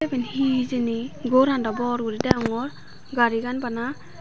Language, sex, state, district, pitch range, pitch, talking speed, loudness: Chakma, female, Tripura, Dhalai, 235-260 Hz, 245 Hz, 155 wpm, -24 LUFS